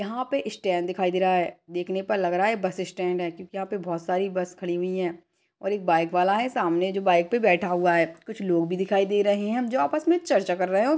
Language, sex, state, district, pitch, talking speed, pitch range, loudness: Hindi, female, Chhattisgarh, Sarguja, 185 Hz, 280 wpm, 180-205 Hz, -25 LUFS